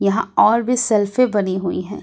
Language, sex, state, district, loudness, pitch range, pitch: Hindi, female, Jharkhand, Ranchi, -17 LUFS, 200-235 Hz, 215 Hz